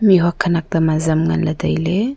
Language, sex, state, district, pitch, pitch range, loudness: Wancho, female, Arunachal Pradesh, Longding, 165 Hz, 155-180 Hz, -17 LUFS